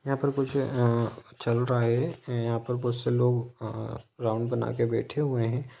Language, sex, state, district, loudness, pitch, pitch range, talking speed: Hindi, male, Jharkhand, Sahebganj, -28 LUFS, 120 Hz, 115-125 Hz, 195 wpm